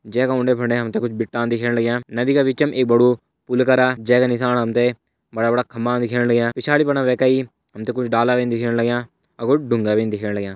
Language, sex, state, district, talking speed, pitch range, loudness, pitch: Hindi, male, Uttarakhand, Uttarkashi, 220 wpm, 115-125 Hz, -19 LUFS, 120 Hz